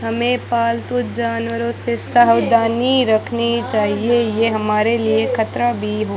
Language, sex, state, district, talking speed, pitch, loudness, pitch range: Hindi, female, Rajasthan, Bikaner, 135 wpm, 230 Hz, -17 LUFS, 220-235 Hz